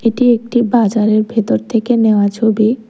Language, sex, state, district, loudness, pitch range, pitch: Bengali, female, Tripura, West Tripura, -13 LUFS, 215-240 Hz, 225 Hz